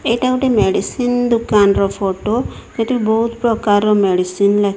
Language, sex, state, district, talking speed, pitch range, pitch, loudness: Odia, female, Odisha, Sambalpur, 125 wpm, 200-235 Hz, 215 Hz, -16 LUFS